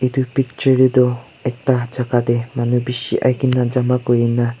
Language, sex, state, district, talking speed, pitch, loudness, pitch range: Nagamese, male, Nagaland, Kohima, 155 wpm, 125 Hz, -17 LUFS, 120-130 Hz